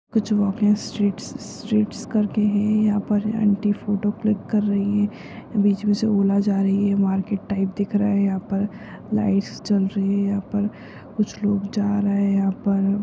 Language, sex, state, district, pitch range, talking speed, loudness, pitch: Hindi, female, Uttarakhand, Tehri Garhwal, 200-210 Hz, 195 wpm, -22 LUFS, 205 Hz